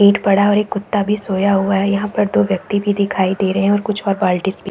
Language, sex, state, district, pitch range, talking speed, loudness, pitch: Hindi, female, Chhattisgarh, Raigarh, 195-205 Hz, 320 wpm, -16 LUFS, 200 Hz